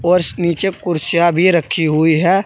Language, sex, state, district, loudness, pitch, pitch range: Hindi, male, Uttar Pradesh, Saharanpur, -15 LUFS, 170 Hz, 165-180 Hz